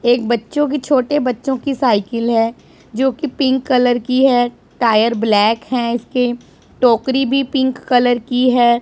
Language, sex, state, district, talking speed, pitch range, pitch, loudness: Hindi, male, Punjab, Pathankot, 165 wpm, 235-265 Hz, 245 Hz, -16 LUFS